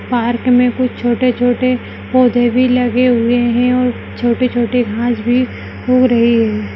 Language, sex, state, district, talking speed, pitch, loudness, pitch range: Hindi, female, Bihar, Madhepura, 140 wpm, 245 Hz, -14 LUFS, 240-250 Hz